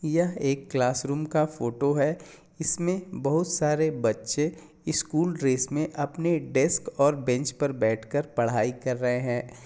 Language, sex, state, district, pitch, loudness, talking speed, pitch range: Hindi, male, Jharkhand, Jamtara, 145 Hz, -26 LUFS, 155 wpm, 125-160 Hz